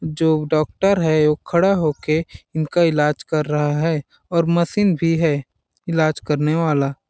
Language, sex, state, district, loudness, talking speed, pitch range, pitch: Hindi, male, Chhattisgarh, Balrampur, -19 LUFS, 150 wpm, 150-170 Hz, 155 Hz